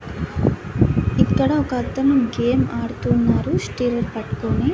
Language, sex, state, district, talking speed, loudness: Telugu, female, Andhra Pradesh, Annamaya, 90 wpm, -20 LUFS